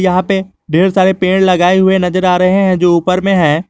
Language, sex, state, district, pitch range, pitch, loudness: Hindi, male, Jharkhand, Garhwa, 180-190 Hz, 185 Hz, -11 LUFS